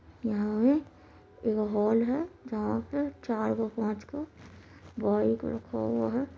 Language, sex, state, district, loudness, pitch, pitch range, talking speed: Maithili, female, Bihar, Supaul, -30 LUFS, 225 Hz, 210-265 Hz, 115 wpm